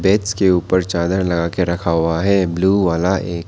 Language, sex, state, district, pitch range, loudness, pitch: Hindi, male, Arunachal Pradesh, Papum Pare, 85-95 Hz, -17 LUFS, 90 Hz